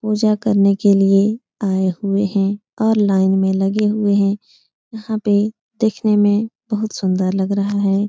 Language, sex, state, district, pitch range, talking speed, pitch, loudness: Hindi, female, Bihar, Supaul, 195-215 Hz, 165 wpm, 205 Hz, -17 LUFS